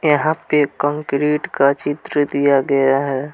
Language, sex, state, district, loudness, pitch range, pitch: Hindi, male, Jharkhand, Palamu, -17 LUFS, 140-150 Hz, 145 Hz